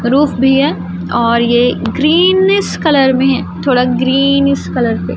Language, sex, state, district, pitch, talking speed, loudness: Hindi, female, Chhattisgarh, Raipur, 245 Hz, 140 wpm, -12 LUFS